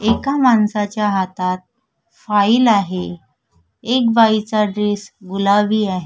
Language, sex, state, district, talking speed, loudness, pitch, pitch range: Marathi, female, Maharashtra, Sindhudurg, 100 wpm, -17 LUFS, 205 Hz, 185-220 Hz